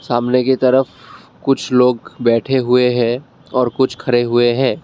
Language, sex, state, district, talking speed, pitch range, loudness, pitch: Hindi, male, Assam, Kamrup Metropolitan, 160 wpm, 120-130 Hz, -16 LUFS, 125 Hz